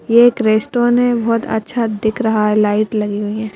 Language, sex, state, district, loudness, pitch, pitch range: Hindi, female, Madhya Pradesh, Bhopal, -15 LUFS, 220 Hz, 215-235 Hz